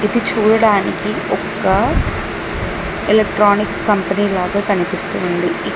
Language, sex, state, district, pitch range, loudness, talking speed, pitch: Telugu, female, Telangana, Mahabubabad, 185-210 Hz, -16 LUFS, 95 wpm, 205 Hz